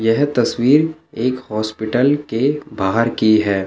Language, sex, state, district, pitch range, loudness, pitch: Hindi, male, Chandigarh, Chandigarh, 110-145 Hz, -17 LUFS, 120 Hz